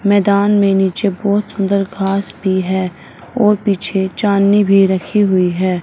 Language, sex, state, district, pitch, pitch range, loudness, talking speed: Hindi, female, Punjab, Fazilka, 195 Hz, 190-205 Hz, -14 LUFS, 155 wpm